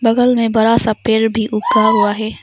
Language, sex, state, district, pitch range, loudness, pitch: Hindi, female, Arunachal Pradesh, Lower Dibang Valley, 215-230 Hz, -14 LUFS, 220 Hz